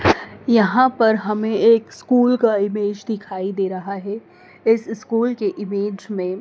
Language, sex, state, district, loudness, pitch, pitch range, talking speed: Hindi, female, Madhya Pradesh, Dhar, -19 LUFS, 210 Hz, 200-225 Hz, 150 wpm